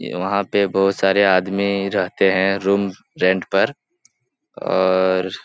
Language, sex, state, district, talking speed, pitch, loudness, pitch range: Hindi, male, Bihar, Jahanabad, 145 wpm, 95 Hz, -18 LUFS, 95-100 Hz